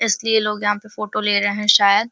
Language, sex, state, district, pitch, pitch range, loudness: Hindi, female, Uttar Pradesh, Deoria, 210 Hz, 205-215 Hz, -17 LUFS